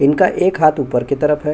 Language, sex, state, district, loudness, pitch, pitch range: Hindi, male, Chhattisgarh, Bastar, -15 LUFS, 150 Hz, 140-155 Hz